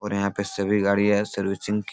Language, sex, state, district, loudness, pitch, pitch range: Hindi, male, Bihar, Supaul, -24 LUFS, 100 Hz, 100-105 Hz